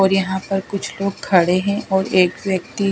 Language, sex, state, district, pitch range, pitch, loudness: Hindi, female, Himachal Pradesh, Shimla, 190-200 Hz, 195 Hz, -19 LUFS